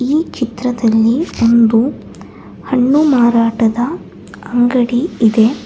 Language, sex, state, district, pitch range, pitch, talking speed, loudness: Kannada, female, Karnataka, Bangalore, 230-255 Hz, 240 Hz, 75 wpm, -13 LUFS